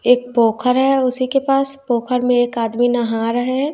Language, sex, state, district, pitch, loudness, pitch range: Hindi, female, Bihar, West Champaran, 250 Hz, -17 LUFS, 240-260 Hz